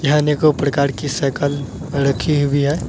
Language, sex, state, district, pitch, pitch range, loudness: Hindi, male, Bihar, Araria, 145 Hz, 140-150 Hz, -18 LUFS